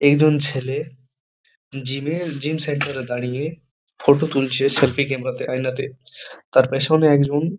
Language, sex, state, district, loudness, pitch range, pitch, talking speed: Bengali, male, West Bengal, Purulia, -20 LUFS, 130-150 Hz, 140 Hz, 135 wpm